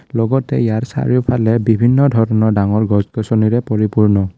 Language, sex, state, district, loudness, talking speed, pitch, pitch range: Assamese, male, Assam, Kamrup Metropolitan, -15 LUFS, 125 wpm, 115 Hz, 110-125 Hz